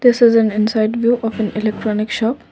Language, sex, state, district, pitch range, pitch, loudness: English, female, Assam, Kamrup Metropolitan, 215-235 Hz, 225 Hz, -16 LUFS